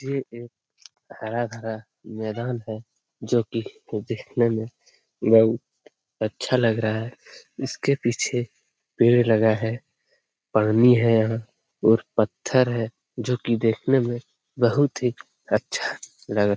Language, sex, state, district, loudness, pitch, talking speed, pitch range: Hindi, male, Jharkhand, Jamtara, -23 LUFS, 115 Hz, 125 wpm, 110-120 Hz